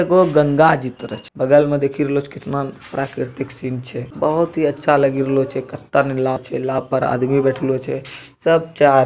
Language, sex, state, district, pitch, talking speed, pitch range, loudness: Angika, male, Bihar, Bhagalpur, 140 Hz, 200 wpm, 130-145 Hz, -18 LUFS